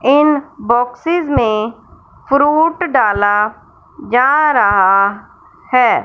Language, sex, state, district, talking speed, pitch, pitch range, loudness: Hindi, female, Punjab, Fazilka, 80 wpm, 245 Hz, 210-295 Hz, -13 LUFS